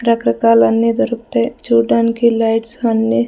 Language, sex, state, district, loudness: Telugu, female, Andhra Pradesh, Sri Satya Sai, -14 LUFS